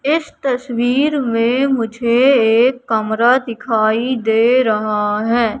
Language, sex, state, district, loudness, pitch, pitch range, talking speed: Hindi, female, Madhya Pradesh, Katni, -15 LUFS, 240 Hz, 225-260 Hz, 105 wpm